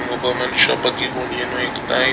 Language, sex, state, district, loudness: Kannada, male, Karnataka, Dakshina Kannada, -18 LUFS